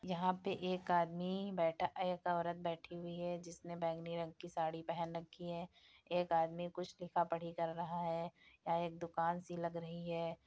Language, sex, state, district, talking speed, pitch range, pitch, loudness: Hindi, female, Bihar, Madhepura, 190 wpm, 170-175 Hz, 170 Hz, -41 LUFS